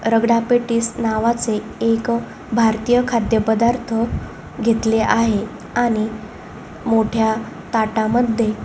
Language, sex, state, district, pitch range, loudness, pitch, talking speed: Marathi, female, Maharashtra, Solapur, 220-235 Hz, -19 LUFS, 230 Hz, 90 wpm